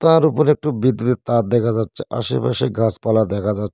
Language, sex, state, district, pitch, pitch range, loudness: Bengali, male, West Bengal, Cooch Behar, 115 Hz, 105-130 Hz, -18 LUFS